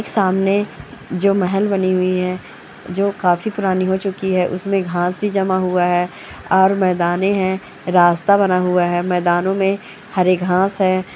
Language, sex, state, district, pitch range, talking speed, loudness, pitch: Hindi, female, West Bengal, Purulia, 180-195 Hz, 160 wpm, -17 LUFS, 185 Hz